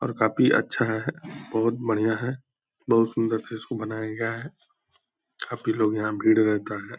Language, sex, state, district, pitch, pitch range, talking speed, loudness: Hindi, male, Bihar, Purnia, 110 Hz, 110-120 Hz, 170 wpm, -25 LUFS